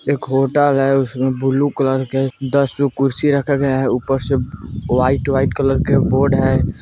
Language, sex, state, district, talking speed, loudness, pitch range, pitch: Bajjika, male, Bihar, Vaishali, 175 wpm, -17 LUFS, 130-140 Hz, 135 Hz